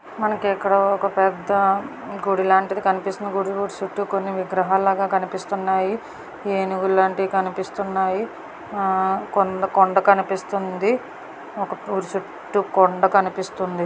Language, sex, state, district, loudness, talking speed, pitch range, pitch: Telugu, female, Karnataka, Bellary, -21 LUFS, 90 wpm, 190-200 Hz, 195 Hz